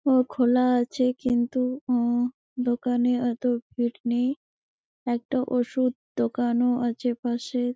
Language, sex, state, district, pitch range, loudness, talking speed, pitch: Bengali, female, West Bengal, Malda, 240-255 Hz, -25 LUFS, 110 wpm, 245 Hz